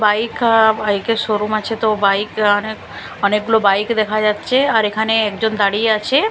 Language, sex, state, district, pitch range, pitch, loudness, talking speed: Bengali, female, Bihar, Katihar, 210-225 Hz, 215 Hz, -16 LUFS, 170 wpm